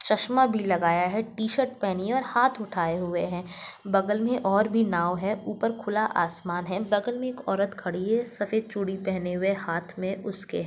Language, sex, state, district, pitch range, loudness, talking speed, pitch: Hindi, female, Jharkhand, Jamtara, 180-220 Hz, -27 LUFS, 200 wpm, 200 Hz